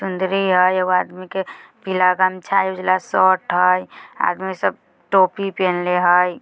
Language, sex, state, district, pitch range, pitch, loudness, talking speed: Bajjika, female, Bihar, Vaishali, 180-190 Hz, 185 Hz, -18 LUFS, 150 wpm